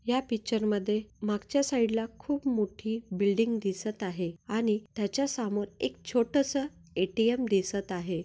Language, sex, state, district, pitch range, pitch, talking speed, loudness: Marathi, female, Maharashtra, Nagpur, 200-240 Hz, 220 Hz, 140 wpm, -30 LUFS